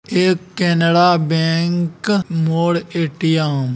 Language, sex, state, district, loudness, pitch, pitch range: Magahi, male, Bihar, Gaya, -17 LUFS, 170 Hz, 160-180 Hz